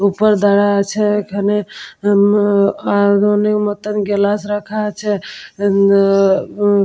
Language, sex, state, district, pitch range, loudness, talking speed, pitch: Bengali, female, West Bengal, Purulia, 200-210 Hz, -15 LUFS, 165 wpm, 205 Hz